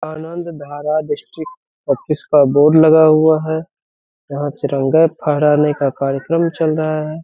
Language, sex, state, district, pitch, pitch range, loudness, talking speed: Hindi, male, Bihar, Saharsa, 155 Hz, 145-160 Hz, -15 LUFS, 130 wpm